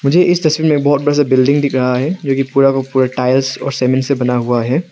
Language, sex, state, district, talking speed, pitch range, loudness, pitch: Hindi, male, Arunachal Pradesh, Lower Dibang Valley, 280 wpm, 130-145 Hz, -14 LUFS, 135 Hz